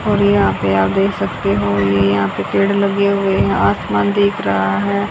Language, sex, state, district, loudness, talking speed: Hindi, female, Haryana, Jhajjar, -15 LUFS, 210 wpm